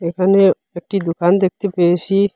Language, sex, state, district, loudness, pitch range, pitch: Bengali, male, Assam, Hailakandi, -16 LUFS, 175-195 Hz, 185 Hz